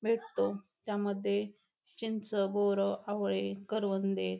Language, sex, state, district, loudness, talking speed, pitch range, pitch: Marathi, female, Maharashtra, Pune, -34 LUFS, 95 wpm, 195-210 Hz, 200 Hz